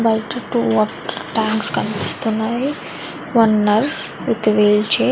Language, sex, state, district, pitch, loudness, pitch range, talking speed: Telugu, female, Andhra Pradesh, Visakhapatnam, 220 Hz, -17 LUFS, 215-235 Hz, 130 wpm